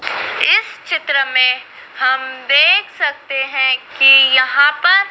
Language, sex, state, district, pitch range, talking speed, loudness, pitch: Hindi, female, Madhya Pradesh, Dhar, 260-335 Hz, 115 wpm, -13 LUFS, 275 Hz